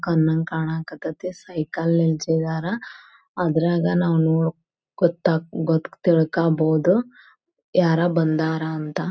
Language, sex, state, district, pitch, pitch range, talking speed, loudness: Kannada, female, Karnataka, Belgaum, 165 Hz, 160-175 Hz, 65 wpm, -22 LUFS